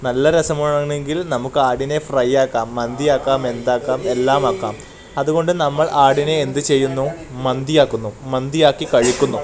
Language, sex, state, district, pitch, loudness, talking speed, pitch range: Malayalam, male, Kerala, Kasaragod, 135 Hz, -18 LUFS, 95 wpm, 130-150 Hz